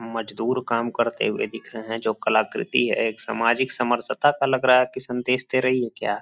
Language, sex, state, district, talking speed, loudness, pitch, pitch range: Hindi, male, Uttar Pradesh, Gorakhpur, 230 wpm, -23 LUFS, 120 Hz, 115-130 Hz